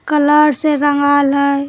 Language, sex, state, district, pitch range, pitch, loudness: Hindi, female, Bihar, Begusarai, 280-300 Hz, 290 Hz, -13 LUFS